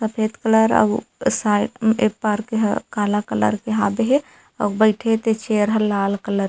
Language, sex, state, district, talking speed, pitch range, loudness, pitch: Chhattisgarhi, female, Chhattisgarh, Rajnandgaon, 185 wpm, 205-225 Hz, -20 LUFS, 215 Hz